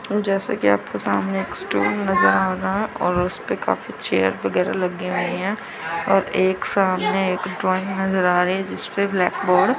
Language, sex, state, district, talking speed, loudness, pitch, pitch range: Hindi, female, Chandigarh, Chandigarh, 190 wpm, -21 LUFS, 185 Hz, 180-195 Hz